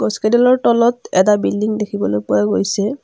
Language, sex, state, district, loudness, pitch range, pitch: Assamese, female, Assam, Kamrup Metropolitan, -16 LUFS, 200-235 Hz, 210 Hz